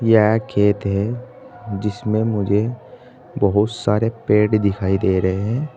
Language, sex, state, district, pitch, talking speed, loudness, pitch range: Hindi, male, Uttar Pradesh, Saharanpur, 105 Hz, 125 wpm, -19 LUFS, 100-115 Hz